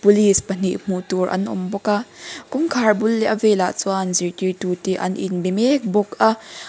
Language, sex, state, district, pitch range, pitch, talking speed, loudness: Mizo, female, Mizoram, Aizawl, 185-215 Hz, 195 Hz, 190 wpm, -20 LUFS